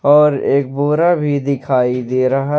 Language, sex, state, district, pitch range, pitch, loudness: Hindi, male, Jharkhand, Ranchi, 130-150 Hz, 140 Hz, -15 LUFS